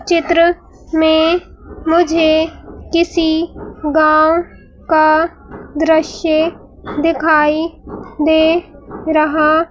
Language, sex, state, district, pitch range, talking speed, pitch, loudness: Hindi, female, Madhya Pradesh, Bhopal, 315-335 Hz, 60 wpm, 320 Hz, -14 LUFS